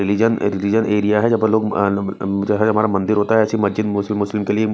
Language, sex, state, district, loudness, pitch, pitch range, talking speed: Hindi, male, Chhattisgarh, Raipur, -18 LUFS, 105 Hz, 100-110 Hz, 240 wpm